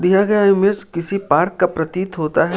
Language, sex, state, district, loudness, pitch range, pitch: Hindi, male, Jharkhand, Ranchi, -17 LUFS, 170-195 Hz, 185 Hz